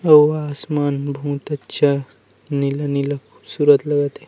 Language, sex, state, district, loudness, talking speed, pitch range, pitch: Chhattisgarhi, male, Chhattisgarh, Rajnandgaon, -19 LUFS, 125 wpm, 140-145 Hz, 145 Hz